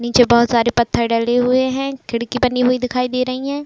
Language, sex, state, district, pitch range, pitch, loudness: Hindi, female, Uttar Pradesh, Jalaun, 235-255 Hz, 250 Hz, -17 LUFS